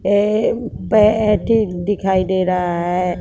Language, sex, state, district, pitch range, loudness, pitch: Hindi, female, Bihar, West Champaran, 180-210 Hz, -17 LUFS, 195 Hz